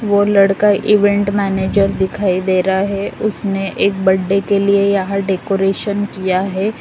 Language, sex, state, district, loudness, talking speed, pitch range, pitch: Hindi, female, Uttar Pradesh, Lalitpur, -15 LUFS, 150 wpm, 190-205 Hz, 195 Hz